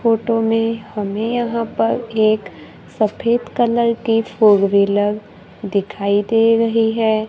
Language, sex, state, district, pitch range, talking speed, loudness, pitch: Hindi, female, Maharashtra, Gondia, 210-230 Hz, 125 wpm, -17 LUFS, 225 Hz